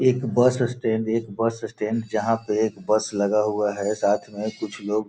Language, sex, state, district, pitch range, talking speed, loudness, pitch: Hindi, male, Bihar, Gopalganj, 105-115 Hz, 190 wpm, -24 LUFS, 110 Hz